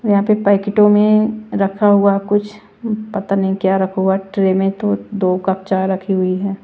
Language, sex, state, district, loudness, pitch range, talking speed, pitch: Hindi, female, Bihar, West Champaran, -16 LUFS, 190-210 Hz, 190 wpm, 200 Hz